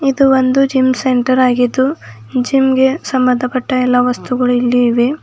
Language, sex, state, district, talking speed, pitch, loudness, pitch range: Kannada, female, Karnataka, Bidar, 150 wpm, 255 Hz, -13 LUFS, 250-265 Hz